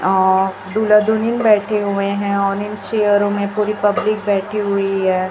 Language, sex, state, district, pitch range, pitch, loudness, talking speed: Hindi, male, Chhattisgarh, Raipur, 195-210 Hz, 205 Hz, -17 LUFS, 170 wpm